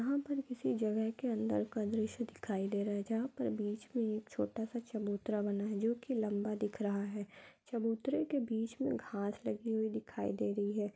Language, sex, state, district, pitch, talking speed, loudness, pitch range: Hindi, female, Bihar, Araria, 220 Hz, 210 wpm, -38 LUFS, 205-235 Hz